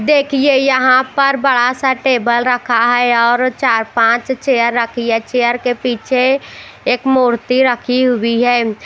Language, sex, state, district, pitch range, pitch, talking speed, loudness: Hindi, female, Haryana, Rohtak, 235-260 Hz, 250 Hz, 150 wpm, -13 LUFS